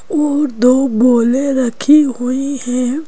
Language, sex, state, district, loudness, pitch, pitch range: Hindi, female, Madhya Pradesh, Bhopal, -14 LUFS, 265 Hz, 250-285 Hz